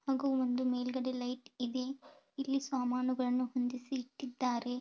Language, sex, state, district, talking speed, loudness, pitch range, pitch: Kannada, female, Karnataka, Belgaum, 110 wpm, -36 LUFS, 250-270 Hz, 255 Hz